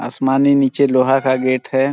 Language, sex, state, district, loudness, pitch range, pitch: Hindi, male, Chhattisgarh, Balrampur, -15 LUFS, 130-135 Hz, 135 Hz